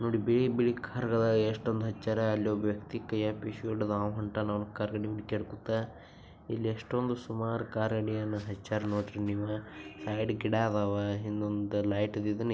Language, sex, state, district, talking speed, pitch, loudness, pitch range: Kannada, male, Karnataka, Bijapur, 155 wpm, 110 Hz, -32 LUFS, 105-115 Hz